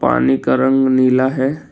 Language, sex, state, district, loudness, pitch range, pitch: Hindi, male, Assam, Kamrup Metropolitan, -15 LUFS, 130-135 Hz, 130 Hz